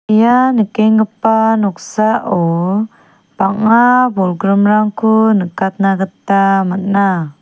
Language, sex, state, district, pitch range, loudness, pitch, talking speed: Garo, female, Meghalaya, South Garo Hills, 195-220 Hz, -13 LUFS, 210 Hz, 65 wpm